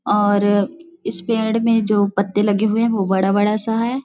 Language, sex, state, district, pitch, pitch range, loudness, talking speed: Hindi, female, Chhattisgarh, Bilaspur, 210 Hz, 205-225 Hz, -18 LUFS, 190 wpm